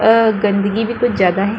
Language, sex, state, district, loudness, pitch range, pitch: Hindi, female, Bihar, Kishanganj, -15 LUFS, 200-225 Hz, 215 Hz